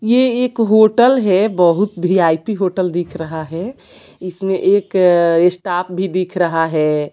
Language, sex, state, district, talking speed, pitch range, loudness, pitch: Hindi, female, Bihar, Patna, 145 wpm, 170-205 Hz, -15 LUFS, 185 Hz